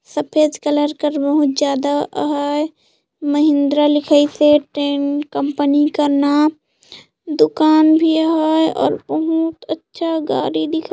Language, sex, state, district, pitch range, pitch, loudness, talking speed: Chhattisgarhi, female, Chhattisgarh, Jashpur, 290-310 Hz, 295 Hz, -16 LUFS, 110 wpm